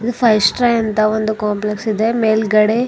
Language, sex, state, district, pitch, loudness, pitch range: Kannada, female, Karnataka, Bidar, 220 Hz, -15 LUFS, 215-230 Hz